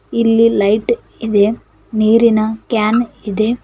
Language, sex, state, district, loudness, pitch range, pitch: Kannada, female, Karnataka, Koppal, -14 LUFS, 215-230 Hz, 220 Hz